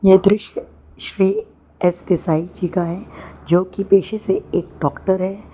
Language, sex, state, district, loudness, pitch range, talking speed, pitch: Hindi, female, Gujarat, Valsad, -19 LUFS, 180-200 Hz, 160 wpm, 190 Hz